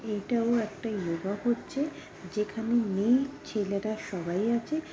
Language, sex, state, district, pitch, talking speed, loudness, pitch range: Bengali, female, West Bengal, Kolkata, 220 Hz, 110 wpm, -30 LUFS, 200-240 Hz